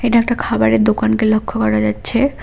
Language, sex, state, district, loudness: Bengali, female, West Bengal, Cooch Behar, -16 LUFS